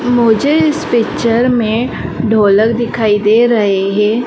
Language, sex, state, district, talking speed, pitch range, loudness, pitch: Hindi, female, Madhya Pradesh, Dhar, 125 wpm, 210-240 Hz, -12 LUFS, 230 Hz